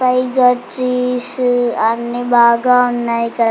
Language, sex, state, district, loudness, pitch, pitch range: Telugu, female, Andhra Pradesh, Chittoor, -15 LUFS, 245 Hz, 235-250 Hz